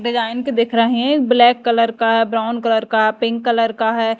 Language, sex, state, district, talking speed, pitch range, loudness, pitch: Hindi, female, Madhya Pradesh, Dhar, 200 wpm, 225-240 Hz, -16 LUFS, 230 Hz